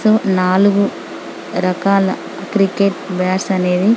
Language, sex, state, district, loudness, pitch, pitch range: Telugu, female, Telangana, Karimnagar, -16 LUFS, 190 Hz, 180-200 Hz